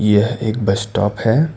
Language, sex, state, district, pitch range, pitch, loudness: Hindi, male, Karnataka, Bangalore, 105-115 Hz, 110 Hz, -17 LUFS